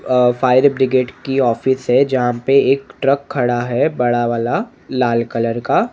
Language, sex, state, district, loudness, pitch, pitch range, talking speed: Hindi, male, Maharashtra, Mumbai Suburban, -16 LUFS, 125 Hz, 120-135 Hz, 180 wpm